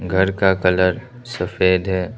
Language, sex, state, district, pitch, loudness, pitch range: Hindi, male, Arunachal Pradesh, Lower Dibang Valley, 95 Hz, -18 LUFS, 90-100 Hz